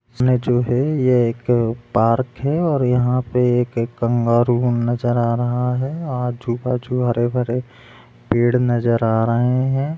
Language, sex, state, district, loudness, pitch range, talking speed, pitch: Hindi, male, Chhattisgarh, Rajnandgaon, -19 LUFS, 120-125 Hz, 160 wpm, 120 Hz